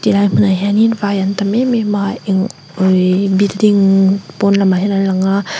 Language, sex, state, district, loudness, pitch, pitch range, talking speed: Mizo, female, Mizoram, Aizawl, -14 LUFS, 195 Hz, 190-205 Hz, 190 wpm